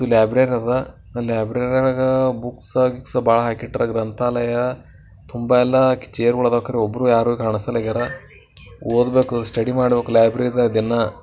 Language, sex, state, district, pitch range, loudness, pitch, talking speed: Kannada, male, Karnataka, Bijapur, 115-125 Hz, -19 LUFS, 120 Hz, 115 wpm